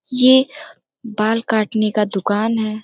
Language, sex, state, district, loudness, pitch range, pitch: Hindi, female, Uttar Pradesh, Gorakhpur, -17 LUFS, 215-250 Hz, 220 Hz